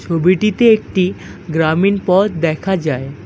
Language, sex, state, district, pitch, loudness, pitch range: Bengali, male, West Bengal, Alipurduar, 180 Hz, -15 LUFS, 160-195 Hz